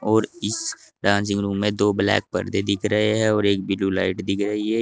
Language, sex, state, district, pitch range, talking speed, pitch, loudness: Hindi, male, Uttar Pradesh, Saharanpur, 100-105 Hz, 225 wpm, 100 Hz, -22 LUFS